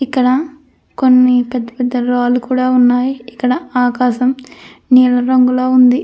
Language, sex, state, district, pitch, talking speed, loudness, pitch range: Telugu, female, Andhra Pradesh, Anantapur, 255 Hz, 110 wpm, -13 LUFS, 250-255 Hz